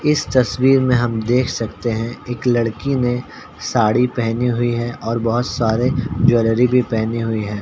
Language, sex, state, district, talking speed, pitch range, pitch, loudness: Hindi, male, Uttar Pradesh, Ghazipur, 175 wpm, 115-125 Hz, 120 Hz, -18 LUFS